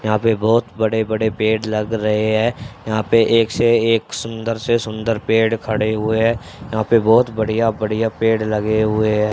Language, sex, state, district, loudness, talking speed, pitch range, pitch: Hindi, male, Haryana, Charkhi Dadri, -18 LUFS, 195 wpm, 110-115 Hz, 110 Hz